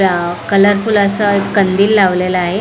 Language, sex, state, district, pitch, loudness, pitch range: Marathi, female, Maharashtra, Mumbai Suburban, 195 Hz, -12 LUFS, 185-205 Hz